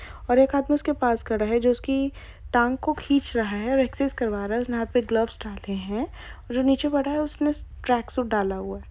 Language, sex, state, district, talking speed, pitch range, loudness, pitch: Hindi, female, Jharkhand, Sahebganj, 235 wpm, 225-275 Hz, -25 LUFS, 245 Hz